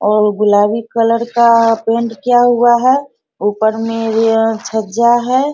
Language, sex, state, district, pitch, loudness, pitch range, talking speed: Hindi, female, Bihar, Bhagalpur, 230 Hz, -13 LUFS, 220-235 Hz, 160 wpm